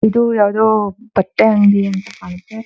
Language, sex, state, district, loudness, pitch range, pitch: Kannada, female, Karnataka, Shimoga, -14 LUFS, 195-220 Hz, 210 Hz